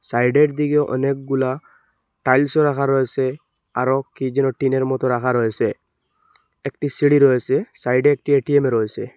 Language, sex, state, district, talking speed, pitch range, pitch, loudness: Bengali, male, Assam, Hailakandi, 130 wpm, 130-145 Hz, 135 Hz, -19 LUFS